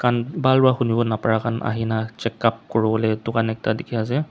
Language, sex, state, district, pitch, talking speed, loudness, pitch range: Nagamese, male, Nagaland, Dimapur, 115 Hz, 210 wpm, -21 LUFS, 110-120 Hz